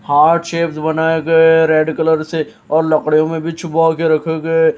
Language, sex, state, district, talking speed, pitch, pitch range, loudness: Hindi, male, Maharashtra, Mumbai Suburban, 200 wpm, 160 Hz, 160-165 Hz, -14 LUFS